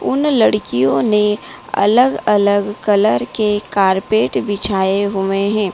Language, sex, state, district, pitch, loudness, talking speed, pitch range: Hindi, female, Madhya Pradesh, Dhar, 205 Hz, -15 LUFS, 115 wpm, 195-210 Hz